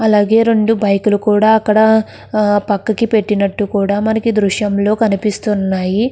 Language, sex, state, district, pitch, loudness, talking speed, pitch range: Telugu, female, Andhra Pradesh, Krishna, 210 Hz, -14 LUFS, 130 wpm, 205-220 Hz